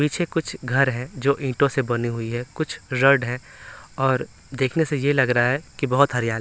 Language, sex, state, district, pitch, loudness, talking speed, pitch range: Hindi, male, Bihar, Patna, 135 Hz, -22 LUFS, 215 wpm, 125-140 Hz